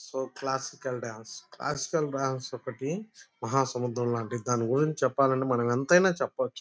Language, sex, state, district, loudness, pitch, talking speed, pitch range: Telugu, male, Andhra Pradesh, Guntur, -29 LUFS, 130 Hz, 120 wpm, 125-140 Hz